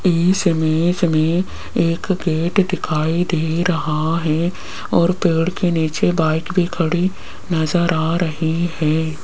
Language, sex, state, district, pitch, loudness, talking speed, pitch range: Hindi, female, Rajasthan, Jaipur, 170 Hz, -18 LUFS, 130 wpm, 160-175 Hz